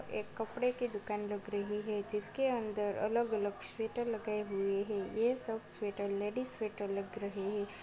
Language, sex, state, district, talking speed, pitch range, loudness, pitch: Hindi, female, Chhattisgarh, Raigarh, 170 wpm, 205-225 Hz, -37 LUFS, 210 Hz